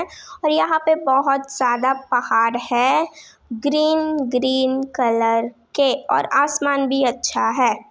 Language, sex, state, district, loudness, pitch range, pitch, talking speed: Hindi, female, Bihar, Begusarai, -19 LUFS, 245-300 Hz, 270 Hz, 115 wpm